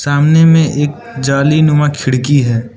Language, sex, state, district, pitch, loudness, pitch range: Hindi, male, Arunachal Pradesh, Lower Dibang Valley, 145 Hz, -11 LUFS, 135-150 Hz